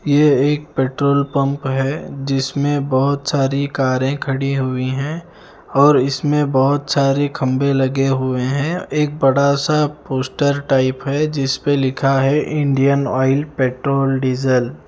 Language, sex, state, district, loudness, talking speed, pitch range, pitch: Hindi, male, Himachal Pradesh, Shimla, -17 LUFS, 140 wpm, 135-145 Hz, 140 Hz